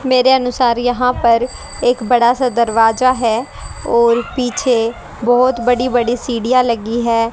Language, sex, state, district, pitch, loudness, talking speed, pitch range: Hindi, female, Haryana, Charkhi Dadri, 245 Hz, -15 LUFS, 140 wpm, 235-250 Hz